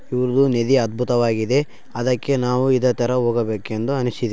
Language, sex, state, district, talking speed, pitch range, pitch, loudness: Kannada, male, Karnataka, Raichur, 140 wpm, 120-130 Hz, 125 Hz, -20 LUFS